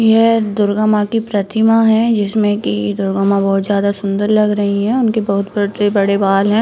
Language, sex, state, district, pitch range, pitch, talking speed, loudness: Hindi, female, Uttarakhand, Uttarkashi, 200-220 Hz, 205 Hz, 190 wpm, -14 LUFS